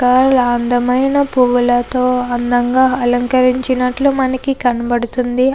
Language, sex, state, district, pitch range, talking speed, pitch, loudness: Telugu, female, Andhra Pradesh, Krishna, 245-260 Hz, 75 wpm, 250 Hz, -14 LUFS